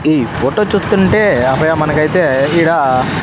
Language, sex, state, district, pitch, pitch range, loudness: Telugu, male, Andhra Pradesh, Sri Satya Sai, 155 Hz, 140-170 Hz, -12 LUFS